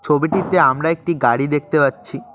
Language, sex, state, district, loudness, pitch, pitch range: Bengali, male, West Bengal, Cooch Behar, -17 LUFS, 150 Hz, 140-165 Hz